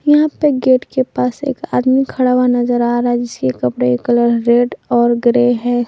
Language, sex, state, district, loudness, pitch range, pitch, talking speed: Hindi, female, Jharkhand, Palamu, -14 LUFS, 240-255 Hz, 245 Hz, 205 wpm